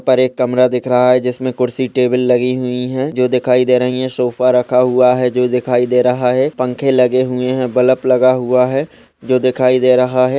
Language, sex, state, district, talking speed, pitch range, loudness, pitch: Hindi, male, Uttarakhand, Tehri Garhwal, 220 wpm, 125-130 Hz, -14 LUFS, 125 Hz